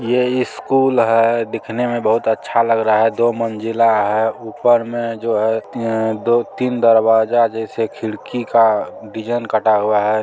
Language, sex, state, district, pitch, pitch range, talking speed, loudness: Maithili, male, Bihar, Supaul, 115 Hz, 110-120 Hz, 165 wpm, -17 LUFS